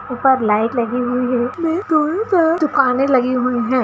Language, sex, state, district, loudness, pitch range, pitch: Hindi, female, Bihar, Kishanganj, -17 LUFS, 250-310 Hz, 255 Hz